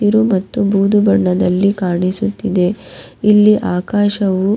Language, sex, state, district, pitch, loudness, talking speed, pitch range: Kannada, female, Karnataka, Raichur, 200 Hz, -14 LUFS, 65 wpm, 185-210 Hz